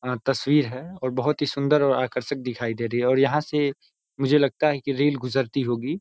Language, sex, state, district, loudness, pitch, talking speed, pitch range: Hindi, male, Uttar Pradesh, Ghazipur, -24 LUFS, 135 Hz, 230 wpm, 125-145 Hz